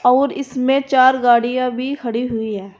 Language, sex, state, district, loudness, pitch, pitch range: Hindi, female, Uttar Pradesh, Saharanpur, -17 LUFS, 250 Hz, 235-265 Hz